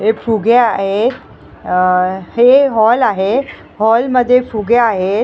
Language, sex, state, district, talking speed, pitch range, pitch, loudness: Marathi, female, Maharashtra, Mumbai Suburban, 125 wpm, 195-245 Hz, 225 Hz, -13 LUFS